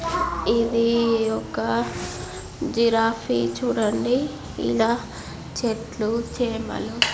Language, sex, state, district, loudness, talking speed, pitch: Telugu, female, Andhra Pradesh, Visakhapatnam, -24 LUFS, 75 wpm, 225 Hz